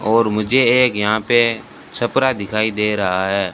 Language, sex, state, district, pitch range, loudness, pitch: Hindi, male, Rajasthan, Bikaner, 105-120 Hz, -17 LUFS, 110 Hz